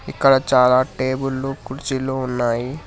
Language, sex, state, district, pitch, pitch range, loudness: Telugu, male, Telangana, Hyderabad, 130 Hz, 125-135 Hz, -19 LUFS